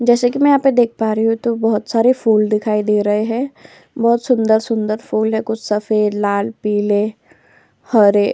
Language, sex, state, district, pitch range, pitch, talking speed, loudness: Hindi, female, Uttar Pradesh, Jyotiba Phule Nagar, 210-235 Hz, 220 Hz, 200 wpm, -16 LUFS